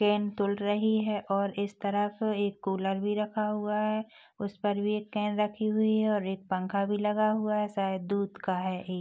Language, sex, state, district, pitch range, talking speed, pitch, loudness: Hindi, female, Chhattisgarh, Rajnandgaon, 200-210 Hz, 220 wpm, 205 Hz, -30 LUFS